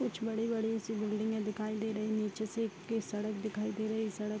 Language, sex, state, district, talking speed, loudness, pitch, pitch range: Hindi, female, Bihar, Vaishali, 260 wpm, -36 LUFS, 215 Hz, 210-220 Hz